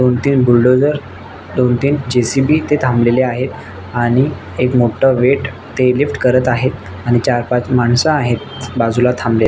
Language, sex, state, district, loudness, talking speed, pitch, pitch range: Marathi, male, Maharashtra, Nagpur, -14 LUFS, 160 wpm, 125 Hz, 120-130 Hz